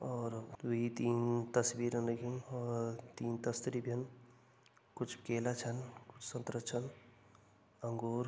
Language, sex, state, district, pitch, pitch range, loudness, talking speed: Garhwali, male, Uttarakhand, Tehri Garhwal, 120 Hz, 115-120 Hz, -40 LUFS, 125 wpm